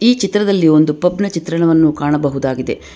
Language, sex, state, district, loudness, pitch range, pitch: Kannada, female, Karnataka, Bangalore, -14 LUFS, 150-195 Hz, 165 Hz